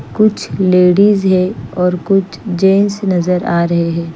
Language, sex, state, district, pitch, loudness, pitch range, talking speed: Hindi, female, Chandigarh, Chandigarh, 185 Hz, -13 LUFS, 180-195 Hz, 145 wpm